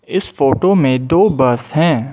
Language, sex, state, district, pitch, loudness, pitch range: Hindi, male, Mizoram, Aizawl, 140 Hz, -14 LUFS, 130-180 Hz